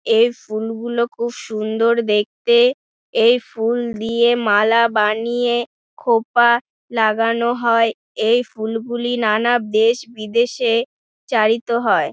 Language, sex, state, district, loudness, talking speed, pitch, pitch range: Bengali, female, West Bengal, Dakshin Dinajpur, -18 LUFS, 115 wpm, 230 Hz, 220-240 Hz